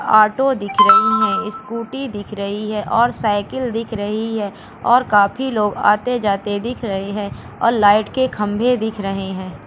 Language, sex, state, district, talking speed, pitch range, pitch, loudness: Hindi, female, Madhya Pradesh, Katni, 170 wpm, 205-245 Hz, 215 Hz, -18 LUFS